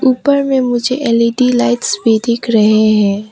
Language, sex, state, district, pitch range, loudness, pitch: Hindi, female, Arunachal Pradesh, Papum Pare, 215-250 Hz, -12 LUFS, 235 Hz